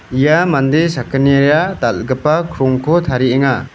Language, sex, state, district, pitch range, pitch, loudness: Garo, male, Meghalaya, West Garo Hills, 130-160 Hz, 140 Hz, -14 LUFS